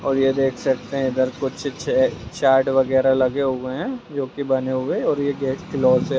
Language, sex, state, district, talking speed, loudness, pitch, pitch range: Magahi, male, Bihar, Gaya, 235 wpm, -21 LUFS, 135 Hz, 130-140 Hz